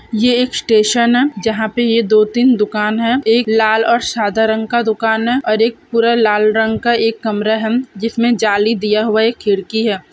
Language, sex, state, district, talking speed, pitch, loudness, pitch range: Hindi, female, Uttarakhand, Tehri Garhwal, 205 wpm, 225 Hz, -14 LUFS, 215-235 Hz